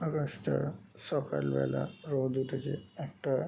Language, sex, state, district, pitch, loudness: Bengali, male, West Bengal, Jhargram, 135 Hz, -34 LUFS